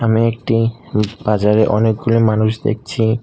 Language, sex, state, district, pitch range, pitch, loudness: Bengali, male, Tripura, Unakoti, 105-115 Hz, 110 Hz, -16 LUFS